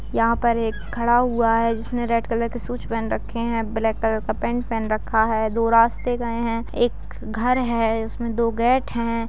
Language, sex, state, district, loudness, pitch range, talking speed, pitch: Hindi, female, Bihar, Jamui, -22 LUFS, 225-235 Hz, 205 wpm, 230 Hz